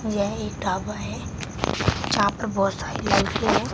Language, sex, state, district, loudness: Hindi, female, Uttar Pradesh, Shamli, -24 LUFS